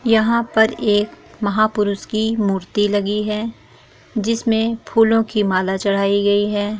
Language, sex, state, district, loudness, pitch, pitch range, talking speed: Hindi, female, Bihar, East Champaran, -18 LUFS, 210 Hz, 205-225 Hz, 160 wpm